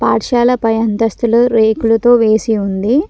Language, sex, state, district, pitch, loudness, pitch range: Telugu, female, Telangana, Mahabubabad, 225 Hz, -13 LUFS, 220-240 Hz